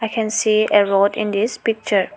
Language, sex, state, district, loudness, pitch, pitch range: English, female, Arunachal Pradesh, Lower Dibang Valley, -18 LUFS, 215 Hz, 205-225 Hz